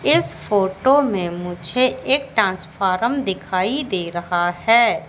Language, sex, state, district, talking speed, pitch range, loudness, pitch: Hindi, female, Madhya Pradesh, Katni, 120 wpm, 175-250 Hz, -19 LUFS, 190 Hz